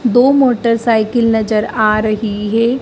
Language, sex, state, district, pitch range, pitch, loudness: Hindi, male, Madhya Pradesh, Dhar, 215-240 Hz, 230 Hz, -13 LUFS